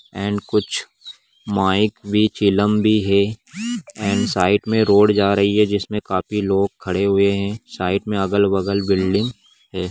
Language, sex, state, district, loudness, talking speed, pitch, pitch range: Magahi, male, Bihar, Gaya, -19 LUFS, 155 wpm, 100 Hz, 100-105 Hz